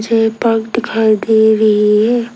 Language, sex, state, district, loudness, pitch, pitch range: Hindi, female, Arunachal Pradesh, Lower Dibang Valley, -12 LUFS, 220 Hz, 215-230 Hz